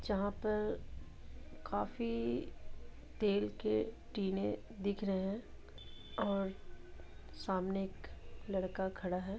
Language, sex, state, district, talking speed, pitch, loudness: Hindi, female, Jharkhand, Sahebganj, 100 wpm, 185 Hz, -39 LUFS